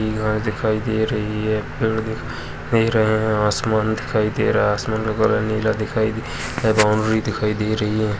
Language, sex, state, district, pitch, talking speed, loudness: Hindi, male, Uttar Pradesh, Jalaun, 110 Hz, 185 wpm, -20 LUFS